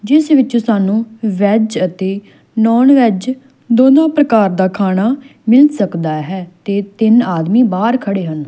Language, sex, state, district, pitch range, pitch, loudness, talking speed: Punjabi, female, Punjab, Fazilka, 190-250 Hz, 220 Hz, -13 LUFS, 140 wpm